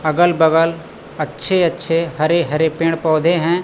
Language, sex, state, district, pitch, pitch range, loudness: Hindi, male, Bihar, Kaimur, 165 Hz, 160-170 Hz, -15 LUFS